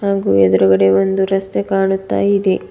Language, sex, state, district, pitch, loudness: Kannada, female, Karnataka, Bidar, 195 Hz, -14 LUFS